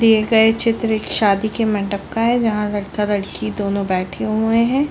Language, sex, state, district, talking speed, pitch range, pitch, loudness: Hindi, female, Chhattisgarh, Balrampur, 185 wpm, 205-225 Hz, 215 Hz, -18 LUFS